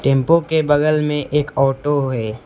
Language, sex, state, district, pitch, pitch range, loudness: Hindi, male, West Bengal, Alipurduar, 145 Hz, 135-150 Hz, -17 LUFS